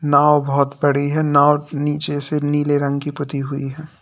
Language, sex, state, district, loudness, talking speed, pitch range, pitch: Hindi, male, Uttar Pradesh, Lalitpur, -18 LUFS, 195 wpm, 140-150 Hz, 145 Hz